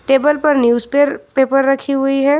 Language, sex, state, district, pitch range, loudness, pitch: Hindi, female, Jharkhand, Ranchi, 270-285 Hz, -14 LUFS, 275 Hz